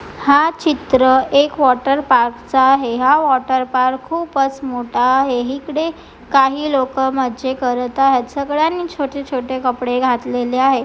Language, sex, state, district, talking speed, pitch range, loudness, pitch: Marathi, female, Maharashtra, Chandrapur, 140 wpm, 255-280 Hz, -16 LUFS, 265 Hz